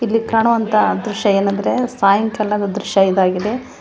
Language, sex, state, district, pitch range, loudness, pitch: Kannada, female, Karnataka, Koppal, 200-225 Hz, -16 LUFS, 210 Hz